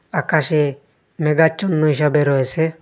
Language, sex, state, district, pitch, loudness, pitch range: Bengali, male, Assam, Hailakandi, 150 Hz, -17 LUFS, 150-160 Hz